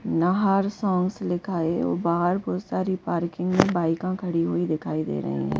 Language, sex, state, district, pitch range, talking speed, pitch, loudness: Hindi, female, Madhya Pradesh, Bhopal, 165-185 Hz, 170 wpm, 175 Hz, -25 LUFS